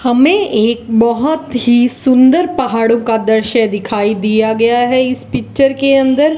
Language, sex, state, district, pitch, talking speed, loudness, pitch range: Hindi, female, Rajasthan, Bikaner, 245 Hz, 160 wpm, -12 LUFS, 225-270 Hz